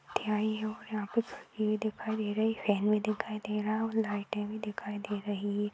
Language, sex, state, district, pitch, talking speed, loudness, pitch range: Hindi, male, Maharashtra, Nagpur, 215 Hz, 210 wpm, -33 LUFS, 210-215 Hz